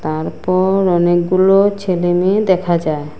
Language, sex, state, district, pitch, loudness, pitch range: Bengali, female, Assam, Hailakandi, 180 Hz, -14 LUFS, 170-190 Hz